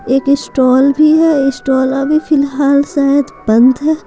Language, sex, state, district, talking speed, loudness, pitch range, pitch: Hindi, female, Bihar, Patna, 145 wpm, -11 LUFS, 265-295 Hz, 280 Hz